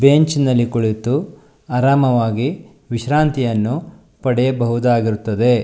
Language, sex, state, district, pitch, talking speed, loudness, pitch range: Kannada, male, Karnataka, Shimoga, 130 Hz, 65 wpm, -17 LUFS, 120-145 Hz